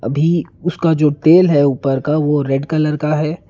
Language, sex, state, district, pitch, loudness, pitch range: Hindi, male, Karnataka, Bangalore, 150 Hz, -15 LUFS, 145-160 Hz